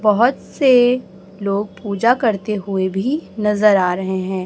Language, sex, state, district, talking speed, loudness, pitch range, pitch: Hindi, male, Chhattisgarh, Raipur, 150 wpm, -17 LUFS, 190-240 Hz, 210 Hz